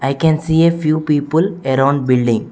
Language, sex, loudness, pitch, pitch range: English, male, -15 LUFS, 150 Hz, 135-160 Hz